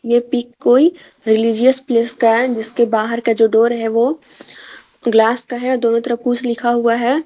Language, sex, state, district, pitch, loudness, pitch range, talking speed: Hindi, female, Jharkhand, Garhwa, 235 Hz, -15 LUFS, 230-245 Hz, 200 wpm